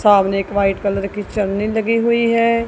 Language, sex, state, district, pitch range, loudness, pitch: Hindi, female, Punjab, Kapurthala, 200-230 Hz, -17 LUFS, 205 Hz